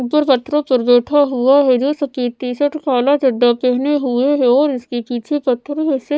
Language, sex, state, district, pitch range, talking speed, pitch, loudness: Hindi, female, Odisha, Sambalpur, 250-290 Hz, 205 wpm, 265 Hz, -15 LUFS